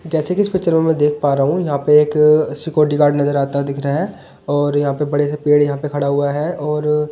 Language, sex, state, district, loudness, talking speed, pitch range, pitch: Hindi, male, Delhi, New Delhi, -16 LUFS, 280 wpm, 145-150 Hz, 150 Hz